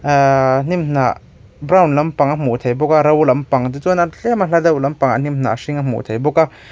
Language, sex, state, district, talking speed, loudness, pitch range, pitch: Mizo, male, Mizoram, Aizawl, 230 wpm, -15 LUFS, 130-155 Hz, 145 Hz